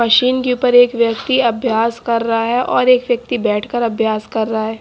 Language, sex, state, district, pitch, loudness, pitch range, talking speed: Hindi, female, Haryana, Jhajjar, 235 Hz, -15 LUFS, 225-250 Hz, 210 wpm